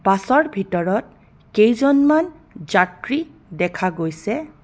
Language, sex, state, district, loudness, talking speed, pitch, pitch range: Assamese, female, Assam, Kamrup Metropolitan, -19 LUFS, 90 wpm, 210 Hz, 180-280 Hz